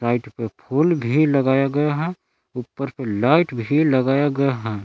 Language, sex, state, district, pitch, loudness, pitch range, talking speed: Hindi, male, Jharkhand, Palamu, 135 Hz, -20 LUFS, 120-150 Hz, 160 wpm